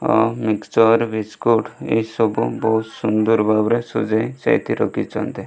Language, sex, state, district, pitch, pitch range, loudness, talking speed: Odia, male, Odisha, Malkangiri, 110 Hz, 110-115 Hz, -19 LUFS, 100 wpm